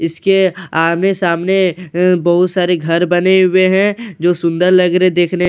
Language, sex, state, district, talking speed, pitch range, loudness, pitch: Hindi, male, Bihar, Katihar, 165 wpm, 175-185 Hz, -13 LUFS, 180 Hz